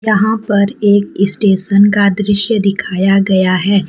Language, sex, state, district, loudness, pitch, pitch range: Hindi, female, Jharkhand, Deoghar, -12 LUFS, 200 Hz, 195-205 Hz